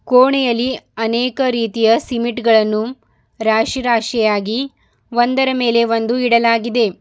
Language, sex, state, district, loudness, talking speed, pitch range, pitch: Kannada, female, Karnataka, Bidar, -16 LUFS, 85 wpm, 225-250 Hz, 235 Hz